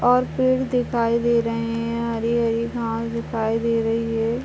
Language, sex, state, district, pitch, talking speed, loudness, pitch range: Hindi, male, Bihar, Purnia, 230 Hz, 160 wpm, -22 LUFS, 230-235 Hz